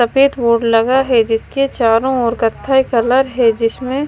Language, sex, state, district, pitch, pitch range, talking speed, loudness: Hindi, female, Himachal Pradesh, Shimla, 240 Hz, 230-265 Hz, 160 wpm, -14 LUFS